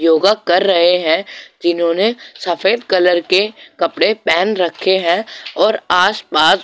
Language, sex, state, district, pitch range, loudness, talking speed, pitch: Hindi, male, Goa, North and South Goa, 170-205 Hz, -15 LUFS, 135 wpm, 180 Hz